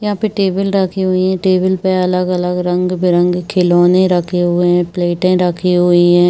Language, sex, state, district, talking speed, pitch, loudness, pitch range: Hindi, female, Uttar Pradesh, Varanasi, 170 wpm, 180 Hz, -13 LUFS, 175-185 Hz